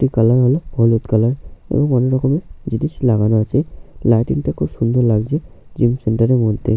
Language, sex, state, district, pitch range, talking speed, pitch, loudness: Bengali, male, West Bengal, Jhargram, 110-130 Hz, 175 wpm, 120 Hz, -17 LUFS